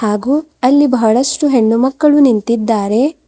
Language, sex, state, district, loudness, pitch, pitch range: Kannada, female, Karnataka, Bidar, -12 LUFS, 255 Hz, 225-285 Hz